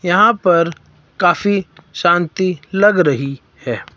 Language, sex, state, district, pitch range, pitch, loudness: Hindi, male, Himachal Pradesh, Shimla, 160-185 Hz, 175 Hz, -15 LUFS